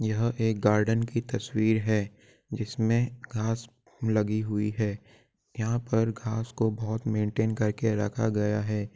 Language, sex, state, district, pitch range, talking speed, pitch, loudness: Hindi, male, Jharkhand, Jamtara, 105-115 Hz, 140 wpm, 110 Hz, -28 LUFS